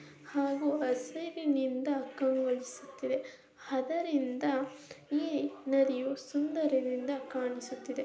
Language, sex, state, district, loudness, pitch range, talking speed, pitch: Kannada, female, Karnataka, Chamarajanagar, -33 LUFS, 260-290 Hz, 60 wpm, 270 Hz